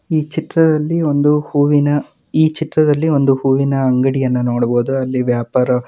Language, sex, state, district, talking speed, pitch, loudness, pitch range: Kannada, male, Karnataka, Mysore, 130 wpm, 145 Hz, -15 LUFS, 130-155 Hz